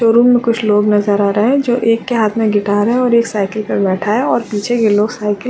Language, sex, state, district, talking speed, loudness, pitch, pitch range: Hindi, female, Uttarakhand, Uttarkashi, 285 wpm, -14 LUFS, 220 Hz, 205-235 Hz